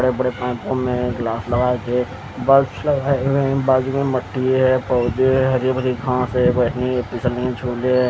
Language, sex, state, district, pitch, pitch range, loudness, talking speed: Hindi, male, Chandigarh, Chandigarh, 125 Hz, 125-130 Hz, -19 LUFS, 165 wpm